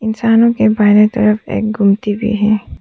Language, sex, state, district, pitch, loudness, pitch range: Hindi, female, Arunachal Pradesh, Papum Pare, 215 Hz, -13 LUFS, 210-220 Hz